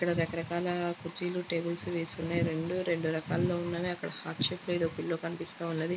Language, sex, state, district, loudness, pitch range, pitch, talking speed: Telugu, female, Andhra Pradesh, Guntur, -33 LUFS, 165-175 Hz, 170 Hz, 170 wpm